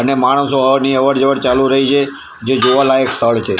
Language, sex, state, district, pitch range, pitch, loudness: Gujarati, male, Gujarat, Gandhinagar, 130-135 Hz, 135 Hz, -13 LUFS